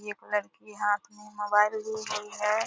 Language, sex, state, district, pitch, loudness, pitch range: Hindi, female, Bihar, Purnia, 210 Hz, -29 LUFS, 210-215 Hz